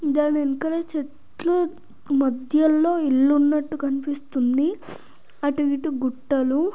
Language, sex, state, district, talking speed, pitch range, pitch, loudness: Telugu, female, Telangana, Karimnagar, 90 wpm, 275-310 Hz, 290 Hz, -22 LUFS